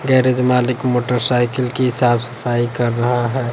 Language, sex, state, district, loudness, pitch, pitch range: Hindi, male, Bihar, West Champaran, -17 LUFS, 125 Hz, 120-125 Hz